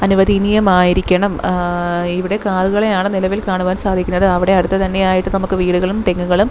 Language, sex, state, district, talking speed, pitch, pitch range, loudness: Malayalam, female, Kerala, Thiruvananthapuram, 110 wpm, 190 Hz, 180-195 Hz, -15 LUFS